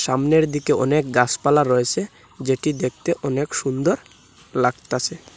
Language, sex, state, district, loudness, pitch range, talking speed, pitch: Bengali, male, Assam, Hailakandi, -21 LUFS, 130-150 Hz, 110 wpm, 140 Hz